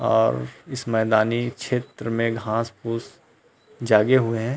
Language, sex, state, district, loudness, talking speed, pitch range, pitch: Hindi, male, Chhattisgarh, Rajnandgaon, -23 LUFS, 130 wpm, 110-125 Hz, 115 Hz